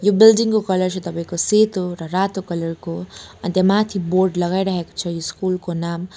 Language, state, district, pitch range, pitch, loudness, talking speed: Nepali, West Bengal, Darjeeling, 170-195 Hz, 185 Hz, -19 LUFS, 185 wpm